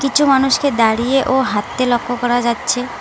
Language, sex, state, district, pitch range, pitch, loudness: Bengali, female, West Bengal, Alipurduar, 240-270 Hz, 245 Hz, -15 LUFS